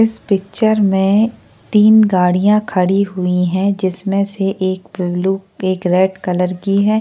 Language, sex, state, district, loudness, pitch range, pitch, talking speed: Hindi, female, Maharashtra, Chandrapur, -15 LUFS, 185-205 Hz, 195 Hz, 145 wpm